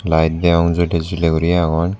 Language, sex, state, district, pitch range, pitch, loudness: Chakma, male, Tripura, Dhalai, 80-85 Hz, 85 Hz, -16 LUFS